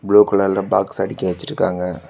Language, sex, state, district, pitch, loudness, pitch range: Tamil, male, Tamil Nadu, Kanyakumari, 100 Hz, -18 LUFS, 90-100 Hz